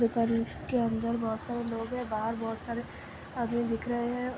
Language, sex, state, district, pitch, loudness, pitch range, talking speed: Hindi, female, Uttar Pradesh, Hamirpur, 235 Hz, -32 LUFS, 230-240 Hz, 190 wpm